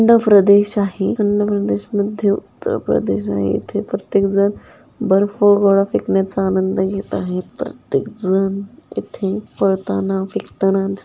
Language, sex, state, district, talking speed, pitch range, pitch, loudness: Marathi, female, Maharashtra, Dhule, 115 wpm, 190-205 Hz, 195 Hz, -17 LUFS